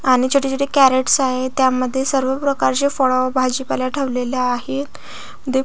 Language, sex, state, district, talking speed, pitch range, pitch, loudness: Marathi, female, Maharashtra, Solapur, 160 wpm, 255-275 Hz, 265 Hz, -18 LUFS